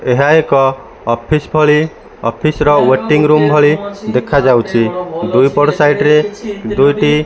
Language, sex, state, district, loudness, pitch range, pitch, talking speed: Odia, male, Odisha, Malkangiri, -12 LUFS, 135-155 Hz, 150 Hz, 115 wpm